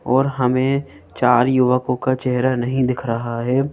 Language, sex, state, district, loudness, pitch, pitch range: Hindi, female, Madhya Pradesh, Bhopal, -19 LUFS, 125 Hz, 125-130 Hz